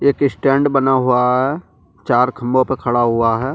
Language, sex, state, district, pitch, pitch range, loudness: Hindi, male, Delhi, New Delhi, 130 Hz, 125-135 Hz, -16 LUFS